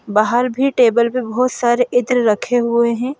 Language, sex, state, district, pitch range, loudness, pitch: Hindi, female, Madhya Pradesh, Bhopal, 235-250 Hz, -16 LUFS, 245 Hz